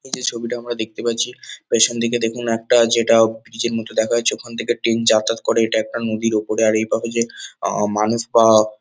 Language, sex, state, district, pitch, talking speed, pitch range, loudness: Bengali, male, West Bengal, North 24 Parganas, 115 Hz, 195 wpm, 110-115 Hz, -19 LUFS